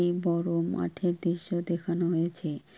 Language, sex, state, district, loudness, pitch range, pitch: Bengali, female, West Bengal, Kolkata, -29 LUFS, 170-175 Hz, 170 Hz